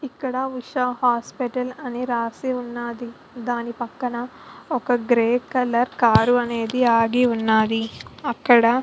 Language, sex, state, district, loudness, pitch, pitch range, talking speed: Telugu, female, Andhra Pradesh, Visakhapatnam, -22 LUFS, 245 Hz, 235-250 Hz, 115 wpm